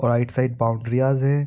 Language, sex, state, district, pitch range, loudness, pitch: Hindi, male, Bihar, Araria, 120-135 Hz, -22 LUFS, 125 Hz